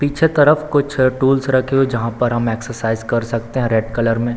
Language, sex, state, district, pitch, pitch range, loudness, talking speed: Hindi, male, Bihar, Samastipur, 120 Hz, 115-135 Hz, -17 LUFS, 245 wpm